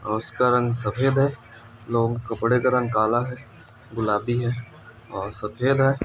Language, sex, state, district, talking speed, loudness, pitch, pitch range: Hindi, male, Andhra Pradesh, Anantapur, 170 wpm, -23 LUFS, 120 Hz, 110-125 Hz